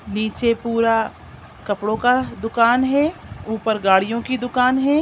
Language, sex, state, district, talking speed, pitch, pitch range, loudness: Hindi, female, Chhattisgarh, Sukma, 145 wpm, 230 Hz, 220-250 Hz, -19 LUFS